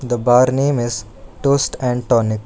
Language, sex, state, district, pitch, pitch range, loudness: English, male, Karnataka, Bangalore, 125 Hz, 115-130 Hz, -17 LUFS